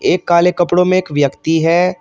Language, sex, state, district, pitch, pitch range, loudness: Hindi, male, Uttar Pradesh, Shamli, 175 Hz, 165-180 Hz, -13 LUFS